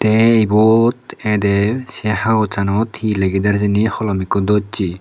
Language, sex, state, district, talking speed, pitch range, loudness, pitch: Chakma, male, Tripura, Unakoti, 130 wpm, 100-110 Hz, -16 LUFS, 105 Hz